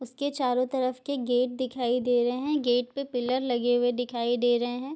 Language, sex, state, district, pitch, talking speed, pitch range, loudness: Hindi, female, Bihar, Darbhanga, 250 Hz, 215 wpm, 245-260 Hz, -27 LUFS